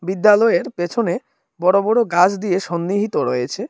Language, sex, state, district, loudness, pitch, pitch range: Bengali, male, Tripura, Dhalai, -18 LUFS, 190 Hz, 175-220 Hz